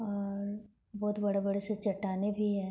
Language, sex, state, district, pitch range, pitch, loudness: Hindi, female, Jharkhand, Sahebganj, 200-210 Hz, 205 Hz, -34 LUFS